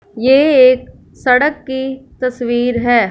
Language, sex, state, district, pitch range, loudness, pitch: Hindi, female, Punjab, Fazilka, 240-265 Hz, -13 LUFS, 255 Hz